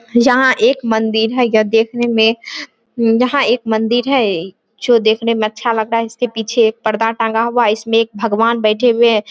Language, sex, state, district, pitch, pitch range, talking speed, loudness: Hindi, female, Bihar, Araria, 230 Hz, 220-240 Hz, 200 wpm, -14 LUFS